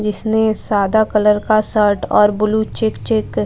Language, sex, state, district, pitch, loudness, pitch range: Hindi, female, Bihar, Katihar, 210 Hz, -16 LUFS, 200-215 Hz